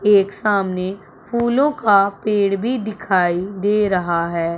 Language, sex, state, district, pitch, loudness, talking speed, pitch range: Hindi, male, Punjab, Pathankot, 200 Hz, -18 LUFS, 130 wpm, 185-210 Hz